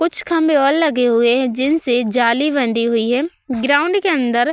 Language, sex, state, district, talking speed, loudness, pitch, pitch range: Hindi, female, Uttar Pradesh, Budaun, 200 wpm, -16 LUFS, 270 Hz, 240-315 Hz